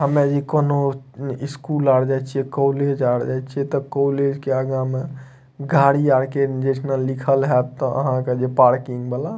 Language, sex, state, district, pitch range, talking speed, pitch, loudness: Maithili, male, Bihar, Madhepura, 130-140 Hz, 180 wpm, 135 Hz, -20 LUFS